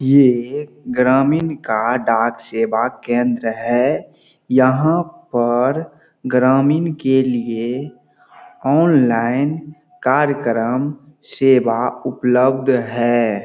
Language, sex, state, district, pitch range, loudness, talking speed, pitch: Hindi, male, Bihar, Saharsa, 120-145 Hz, -17 LUFS, 80 wpm, 130 Hz